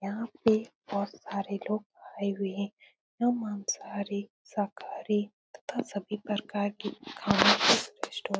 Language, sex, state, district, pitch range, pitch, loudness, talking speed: Hindi, female, Bihar, Saran, 200-220 Hz, 205 Hz, -30 LUFS, 120 wpm